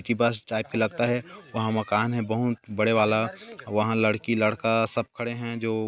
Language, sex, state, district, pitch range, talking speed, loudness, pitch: Hindi, male, Chhattisgarh, Korba, 110-120 Hz, 205 wpm, -26 LUFS, 115 Hz